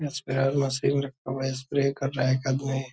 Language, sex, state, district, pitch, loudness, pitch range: Hindi, male, Bihar, Purnia, 135 Hz, -27 LUFS, 135-140 Hz